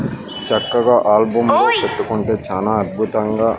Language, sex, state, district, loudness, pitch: Telugu, male, Andhra Pradesh, Sri Satya Sai, -16 LUFS, 120 Hz